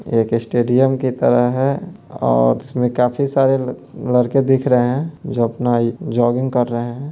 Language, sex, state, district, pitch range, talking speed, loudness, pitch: Hindi, male, Bihar, Muzaffarpur, 120-135 Hz, 185 wpm, -17 LUFS, 125 Hz